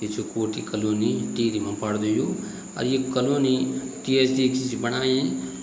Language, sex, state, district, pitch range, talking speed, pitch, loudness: Garhwali, male, Uttarakhand, Tehri Garhwal, 105-130 Hz, 160 wpm, 120 Hz, -24 LUFS